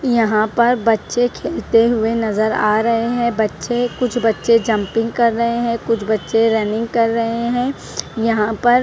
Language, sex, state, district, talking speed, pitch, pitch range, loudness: Hindi, female, Punjab, Kapurthala, 170 wpm, 230 Hz, 220-235 Hz, -17 LUFS